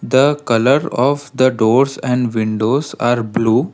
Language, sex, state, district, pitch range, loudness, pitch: English, male, Karnataka, Bangalore, 115-140 Hz, -15 LUFS, 125 Hz